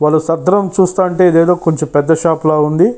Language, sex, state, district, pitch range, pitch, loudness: Telugu, male, Andhra Pradesh, Chittoor, 155-185 Hz, 165 Hz, -12 LUFS